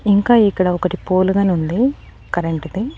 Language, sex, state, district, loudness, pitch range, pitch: Telugu, female, Andhra Pradesh, Annamaya, -17 LUFS, 180-210 Hz, 190 Hz